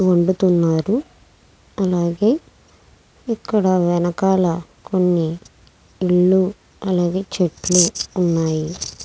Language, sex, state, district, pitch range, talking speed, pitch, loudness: Telugu, female, Andhra Pradesh, Krishna, 170-190 Hz, 55 wpm, 180 Hz, -19 LUFS